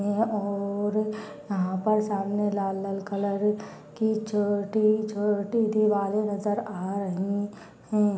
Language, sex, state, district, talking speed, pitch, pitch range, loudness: Hindi, female, Maharashtra, Pune, 105 wpm, 205 Hz, 200-215 Hz, -27 LUFS